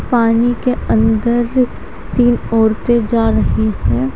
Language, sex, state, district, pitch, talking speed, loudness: Hindi, female, Haryana, Charkhi Dadri, 230 Hz, 115 wpm, -15 LUFS